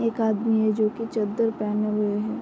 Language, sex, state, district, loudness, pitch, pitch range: Hindi, female, Uttar Pradesh, Varanasi, -24 LUFS, 215 Hz, 210-225 Hz